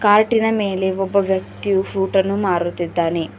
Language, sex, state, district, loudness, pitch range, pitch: Kannada, female, Karnataka, Bidar, -19 LUFS, 180-200 Hz, 195 Hz